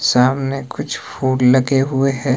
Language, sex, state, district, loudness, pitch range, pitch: Hindi, male, Himachal Pradesh, Shimla, -17 LUFS, 130-135 Hz, 135 Hz